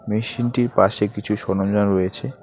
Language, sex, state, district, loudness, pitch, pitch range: Bengali, male, West Bengal, Alipurduar, -21 LUFS, 105 Hz, 95-110 Hz